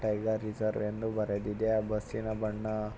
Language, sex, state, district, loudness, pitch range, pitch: Kannada, male, Karnataka, Mysore, -33 LUFS, 105-110 Hz, 110 Hz